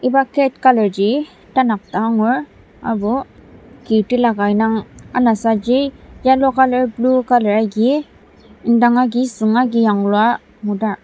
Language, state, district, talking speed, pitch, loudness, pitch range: Ao, Nagaland, Dimapur, 120 wpm, 235 Hz, -16 LUFS, 220-255 Hz